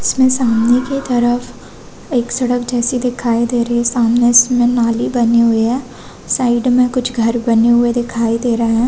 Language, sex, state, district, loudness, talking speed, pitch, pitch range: Hindi, female, Chhattisgarh, Korba, -14 LUFS, 180 wpm, 240 Hz, 235-250 Hz